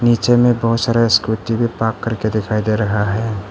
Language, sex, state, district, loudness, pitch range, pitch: Hindi, male, Arunachal Pradesh, Papum Pare, -16 LUFS, 110-115 Hz, 115 Hz